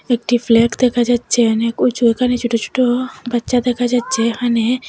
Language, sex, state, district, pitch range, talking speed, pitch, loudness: Bengali, female, Assam, Hailakandi, 235-245 Hz, 160 wpm, 245 Hz, -16 LUFS